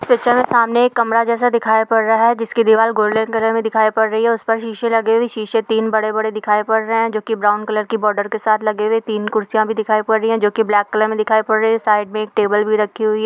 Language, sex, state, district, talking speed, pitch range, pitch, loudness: Hindi, female, Bihar, Jamui, 305 wpm, 215-225 Hz, 220 Hz, -16 LUFS